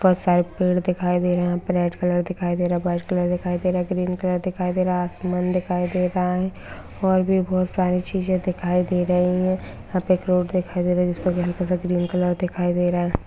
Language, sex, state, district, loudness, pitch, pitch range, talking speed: Hindi, female, Bihar, Araria, -22 LUFS, 180 Hz, 180-185 Hz, 260 wpm